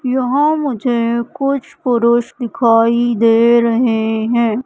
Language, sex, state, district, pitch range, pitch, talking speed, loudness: Hindi, female, Madhya Pradesh, Katni, 230-255 Hz, 235 Hz, 105 wpm, -14 LUFS